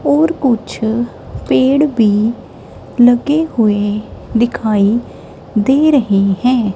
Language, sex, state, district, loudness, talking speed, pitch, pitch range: Hindi, male, Punjab, Kapurthala, -14 LUFS, 90 wpm, 235 Hz, 215-270 Hz